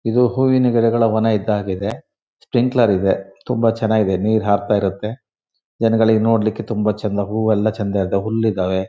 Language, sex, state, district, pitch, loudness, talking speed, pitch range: Kannada, male, Karnataka, Shimoga, 110 Hz, -18 LUFS, 155 wpm, 100-115 Hz